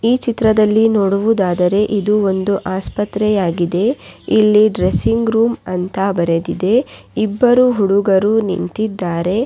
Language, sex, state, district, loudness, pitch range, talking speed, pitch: Kannada, female, Karnataka, Raichur, -15 LUFS, 190-220 Hz, 100 wpm, 205 Hz